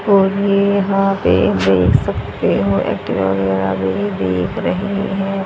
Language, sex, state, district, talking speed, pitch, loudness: Hindi, female, Haryana, Jhajjar, 110 wpm, 100 Hz, -16 LUFS